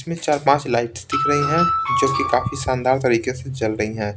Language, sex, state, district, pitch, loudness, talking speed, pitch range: Hindi, male, Bihar, Patna, 130 Hz, -20 LUFS, 230 wpm, 115-145 Hz